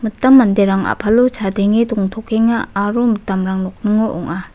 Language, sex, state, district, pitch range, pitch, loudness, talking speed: Garo, female, Meghalaya, West Garo Hills, 200-230 Hz, 215 Hz, -15 LUFS, 120 wpm